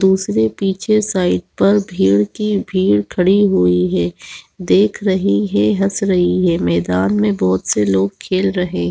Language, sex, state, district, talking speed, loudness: Hindi, female, Chhattisgarh, Raigarh, 160 wpm, -15 LUFS